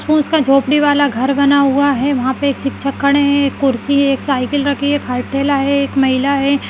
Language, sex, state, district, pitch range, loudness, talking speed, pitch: Kumaoni, female, Uttarakhand, Uttarkashi, 275-285 Hz, -14 LUFS, 195 wpm, 280 Hz